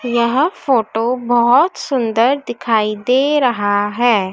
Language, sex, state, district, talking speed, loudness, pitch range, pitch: Hindi, female, Madhya Pradesh, Dhar, 110 wpm, -15 LUFS, 225-260 Hz, 240 Hz